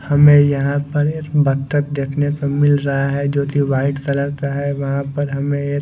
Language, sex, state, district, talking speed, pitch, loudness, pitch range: Hindi, male, Chandigarh, Chandigarh, 215 wpm, 140 Hz, -17 LUFS, 140-145 Hz